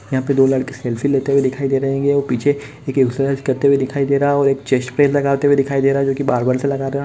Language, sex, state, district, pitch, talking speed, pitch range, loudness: Hindi, male, Uttarakhand, Uttarkashi, 135 Hz, 295 wpm, 135-140 Hz, -17 LUFS